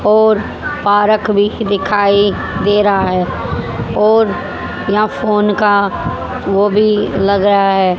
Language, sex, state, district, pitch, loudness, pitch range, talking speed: Hindi, female, Haryana, Jhajjar, 205 Hz, -13 LUFS, 200-215 Hz, 120 wpm